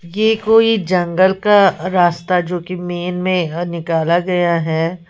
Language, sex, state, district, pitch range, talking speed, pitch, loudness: Hindi, female, Uttar Pradesh, Lalitpur, 170-185 Hz, 155 wpm, 180 Hz, -16 LUFS